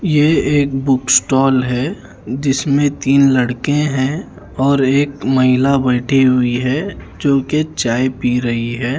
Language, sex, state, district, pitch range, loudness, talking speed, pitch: Hindi, male, Haryana, Charkhi Dadri, 125-140 Hz, -15 LUFS, 140 wpm, 135 Hz